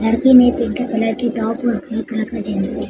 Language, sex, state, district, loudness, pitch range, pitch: Hindi, female, Bihar, Madhepura, -17 LUFS, 225-245 Hz, 230 Hz